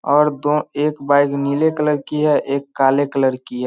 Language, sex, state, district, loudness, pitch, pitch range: Hindi, male, Bihar, Samastipur, -18 LUFS, 145 Hz, 140-150 Hz